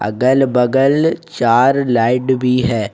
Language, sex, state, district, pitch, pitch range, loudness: Hindi, male, Jharkhand, Ranchi, 125 Hz, 120-135 Hz, -14 LUFS